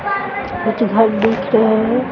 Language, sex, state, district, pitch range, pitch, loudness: Hindi, female, Bihar, Sitamarhi, 220-255 Hz, 225 Hz, -16 LUFS